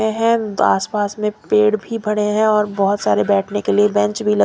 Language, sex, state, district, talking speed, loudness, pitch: Hindi, female, Punjab, Kapurthala, 230 wpm, -17 LUFS, 205 Hz